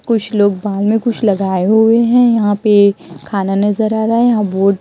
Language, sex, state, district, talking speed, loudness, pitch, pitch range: Hindi, female, Chhattisgarh, Raipur, 225 wpm, -13 LUFS, 210 Hz, 200-225 Hz